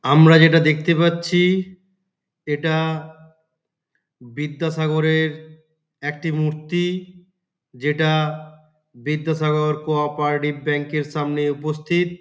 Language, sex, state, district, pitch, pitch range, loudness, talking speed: Bengali, male, West Bengal, Paschim Medinipur, 155 Hz, 150-170 Hz, -20 LUFS, 80 wpm